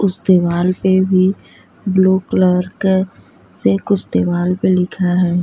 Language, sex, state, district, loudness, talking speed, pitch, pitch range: Hindi, female, Bihar, Vaishali, -15 LUFS, 145 wpm, 185 Hz, 175-190 Hz